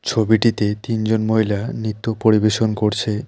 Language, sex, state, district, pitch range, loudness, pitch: Bengali, male, West Bengal, Alipurduar, 105-110 Hz, -19 LUFS, 110 Hz